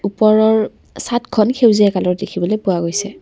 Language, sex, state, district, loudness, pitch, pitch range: Assamese, female, Assam, Kamrup Metropolitan, -15 LUFS, 210 Hz, 190-220 Hz